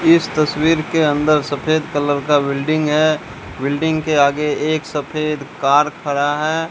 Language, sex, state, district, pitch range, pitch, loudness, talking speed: Hindi, male, Rajasthan, Bikaner, 145-155 Hz, 150 Hz, -17 LUFS, 150 wpm